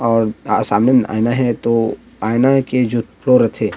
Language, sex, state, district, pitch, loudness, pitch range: Chhattisgarhi, male, Chhattisgarh, Rajnandgaon, 115 Hz, -16 LUFS, 110-125 Hz